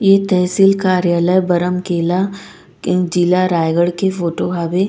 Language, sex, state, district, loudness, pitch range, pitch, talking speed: Chhattisgarhi, female, Chhattisgarh, Raigarh, -15 LUFS, 175-190 Hz, 180 Hz, 145 wpm